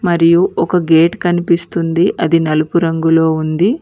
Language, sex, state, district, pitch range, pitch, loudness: Telugu, female, Telangana, Mahabubabad, 165-175 Hz, 170 Hz, -13 LUFS